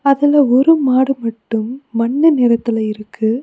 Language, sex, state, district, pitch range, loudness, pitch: Tamil, female, Tamil Nadu, Nilgiris, 230-275 Hz, -15 LUFS, 245 Hz